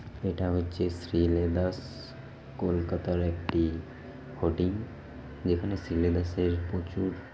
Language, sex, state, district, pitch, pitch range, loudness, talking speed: Bengali, male, West Bengal, Kolkata, 90 Hz, 85-95 Hz, -30 LUFS, 90 wpm